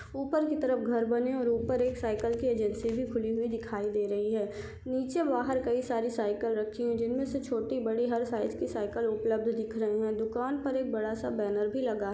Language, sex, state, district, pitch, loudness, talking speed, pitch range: Hindi, female, Chhattisgarh, Sarguja, 230 Hz, -31 LUFS, 225 wpm, 220-250 Hz